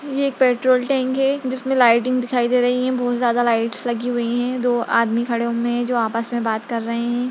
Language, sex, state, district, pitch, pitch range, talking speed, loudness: Hindi, female, Bihar, Jahanabad, 245 Hz, 235-255 Hz, 240 wpm, -19 LUFS